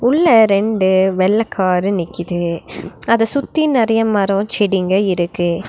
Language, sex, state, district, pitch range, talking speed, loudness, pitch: Tamil, female, Tamil Nadu, Nilgiris, 185-225 Hz, 115 wpm, -15 LUFS, 200 Hz